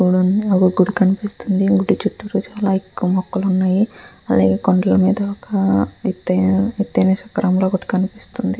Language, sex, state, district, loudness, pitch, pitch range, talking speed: Telugu, female, Andhra Pradesh, Guntur, -18 LUFS, 190 Hz, 185-200 Hz, 120 wpm